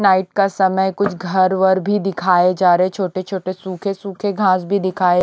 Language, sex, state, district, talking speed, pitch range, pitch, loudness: Hindi, female, Haryana, Rohtak, 195 wpm, 185-195 Hz, 190 Hz, -17 LUFS